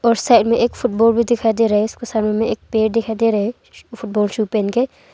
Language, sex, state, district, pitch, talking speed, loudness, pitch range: Hindi, female, Arunachal Pradesh, Longding, 225 Hz, 270 wpm, -17 LUFS, 220-235 Hz